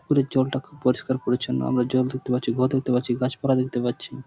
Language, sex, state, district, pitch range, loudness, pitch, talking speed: Bengali, male, West Bengal, Purulia, 125-130 Hz, -24 LUFS, 130 Hz, 225 wpm